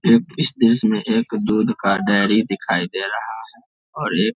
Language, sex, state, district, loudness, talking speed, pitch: Hindi, male, Bihar, Darbhanga, -19 LUFS, 205 wpm, 115 Hz